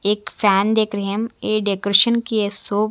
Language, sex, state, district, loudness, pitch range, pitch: Hindi, female, Chhattisgarh, Raipur, -18 LUFS, 200-220 Hz, 210 Hz